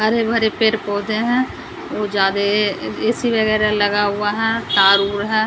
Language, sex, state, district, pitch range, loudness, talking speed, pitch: Hindi, female, Bihar, Patna, 205-225 Hz, -17 LUFS, 145 wpm, 215 Hz